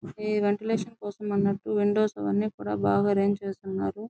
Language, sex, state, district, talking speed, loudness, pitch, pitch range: Telugu, female, Andhra Pradesh, Chittoor, 160 wpm, -27 LUFS, 200 Hz, 175-210 Hz